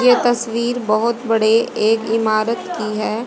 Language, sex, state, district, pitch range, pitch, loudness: Hindi, female, Haryana, Rohtak, 220-235 Hz, 225 Hz, -17 LUFS